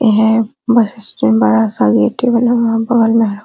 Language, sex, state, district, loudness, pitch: Hindi, female, Bihar, Araria, -13 LUFS, 225 Hz